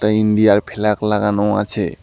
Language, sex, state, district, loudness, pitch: Bengali, male, West Bengal, Alipurduar, -16 LUFS, 105 Hz